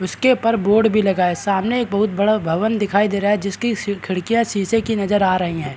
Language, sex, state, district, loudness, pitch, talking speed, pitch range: Hindi, male, Bihar, Araria, -18 LUFS, 205 Hz, 250 wpm, 195-225 Hz